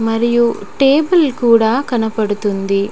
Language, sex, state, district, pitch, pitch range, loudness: Telugu, female, Telangana, Nalgonda, 230 Hz, 215-265 Hz, -14 LUFS